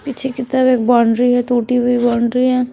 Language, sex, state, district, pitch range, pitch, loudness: Hindi, female, Chhattisgarh, Raipur, 240-255 Hz, 245 Hz, -15 LUFS